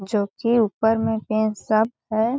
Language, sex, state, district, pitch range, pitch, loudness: Hindi, female, Chhattisgarh, Balrampur, 215-225 Hz, 220 Hz, -22 LUFS